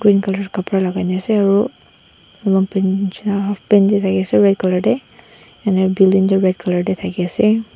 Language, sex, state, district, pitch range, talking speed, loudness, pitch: Nagamese, female, Nagaland, Dimapur, 190-200 Hz, 170 wpm, -16 LUFS, 195 Hz